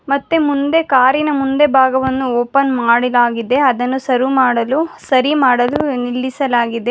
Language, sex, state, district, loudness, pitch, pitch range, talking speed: Kannada, female, Karnataka, Bangalore, -14 LUFS, 260 Hz, 245-280 Hz, 120 wpm